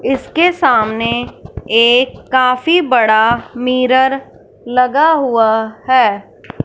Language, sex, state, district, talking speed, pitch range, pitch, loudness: Hindi, female, Punjab, Fazilka, 80 wpm, 230-265 Hz, 250 Hz, -13 LUFS